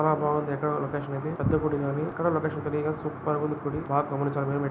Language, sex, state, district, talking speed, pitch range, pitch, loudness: Telugu, male, Karnataka, Dharwad, 240 wpm, 140-155 Hz, 150 Hz, -28 LUFS